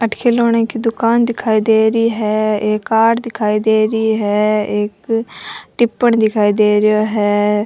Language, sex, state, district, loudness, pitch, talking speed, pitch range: Rajasthani, female, Rajasthan, Churu, -15 LUFS, 220 Hz, 155 wpm, 210-230 Hz